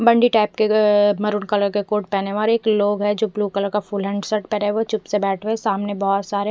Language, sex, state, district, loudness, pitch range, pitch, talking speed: Hindi, female, Punjab, Fazilka, -20 LUFS, 200-215 Hz, 205 Hz, 275 wpm